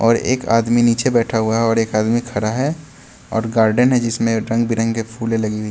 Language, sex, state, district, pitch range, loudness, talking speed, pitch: Hindi, male, Bihar, West Champaran, 110-120 Hz, -17 LUFS, 210 wpm, 115 Hz